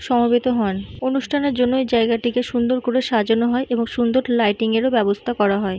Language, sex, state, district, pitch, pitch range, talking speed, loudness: Bengali, female, West Bengal, Jhargram, 240 Hz, 225-255 Hz, 175 wpm, -19 LUFS